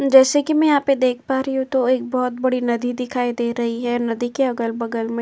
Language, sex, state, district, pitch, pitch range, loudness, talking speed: Hindi, female, Uttar Pradesh, Jyotiba Phule Nagar, 250 Hz, 240-265 Hz, -20 LUFS, 265 wpm